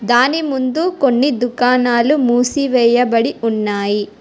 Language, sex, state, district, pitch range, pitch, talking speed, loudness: Telugu, female, Telangana, Hyderabad, 235-270 Hz, 245 Hz, 100 wpm, -15 LUFS